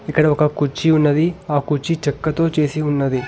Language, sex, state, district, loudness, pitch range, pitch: Telugu, male, Telangana, Hyderabad, -18 LUFS, 145-160 Hz, 150 Hz